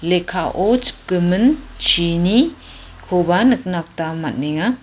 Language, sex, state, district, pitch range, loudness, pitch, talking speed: Garo, female, Meghalaya, West Garo Hills, 170-245 Hz, -17 LUFS, 180 Hz, 85 wpm